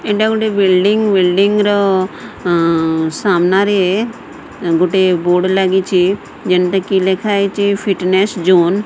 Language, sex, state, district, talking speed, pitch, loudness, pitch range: Odia, female, Odisha, Sambalpur, 100 wpm, 190 Hz, -14 LUFS, 180-205 Hz